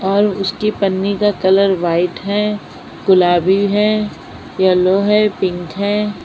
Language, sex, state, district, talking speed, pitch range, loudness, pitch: Hindi, female, Maharashtra, Mumbai Suburban, 125 wpm, 185-210 Hz, -15 LUFS, 195 Hz